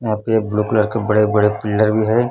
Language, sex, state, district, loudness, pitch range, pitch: Hindi, male, Chhattisgarh, Raipur, -17 LUFS, 105-110 Hz, 105 Hz